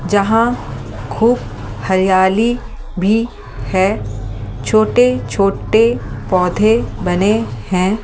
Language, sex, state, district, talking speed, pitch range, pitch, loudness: Hindi, female, Delhi, New Delhi, 75 wpm, 170-220 Hz, 190 Hz, -15 LUFS